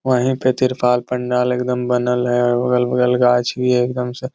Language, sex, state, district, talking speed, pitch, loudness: Magahi, male, Bihar, Lakhisarai, 180 wpm, 125 Hz, -17 LUFS